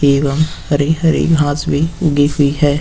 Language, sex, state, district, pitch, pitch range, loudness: Hindi, male, Uttar Pradesh, Lucknow, 145 Hz, 145-155 Hz, -14 LUFS